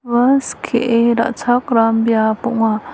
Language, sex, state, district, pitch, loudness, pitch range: Garo, female, Meghalaya, West Garo Hills, 235 Hz, -15 LUFS, 225-245 Hz